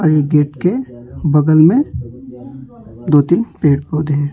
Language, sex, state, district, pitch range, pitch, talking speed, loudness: Hindi, male, West Bengal, Alipurduar, 125-155 Hz, 145 Hz, 140 wpm, -14 LUFS